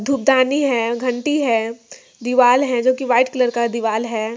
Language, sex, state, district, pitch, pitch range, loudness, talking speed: Hindi, female, Jharkhand, Sahebganj, 245 Hz, 235-260 Hz, -17 LUFS, 180 wpm